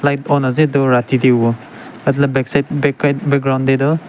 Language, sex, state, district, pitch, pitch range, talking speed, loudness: Nagamese, male, Nagaland, Dimapur, 140 Hz, 130-145 Hz, 175 wpm, -15 LUFS